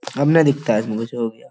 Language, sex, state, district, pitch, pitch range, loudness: Hindi, male, Bihar, Purnia, 120 Hz, 115-145 Hz, -19 LUFS